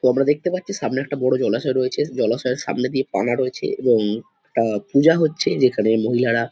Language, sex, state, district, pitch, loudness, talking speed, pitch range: Bengali, male, West Bengal, Dakshin Dinajpur, 130 Hz, -20 LUFS, 195 wpm, 115-140 Hz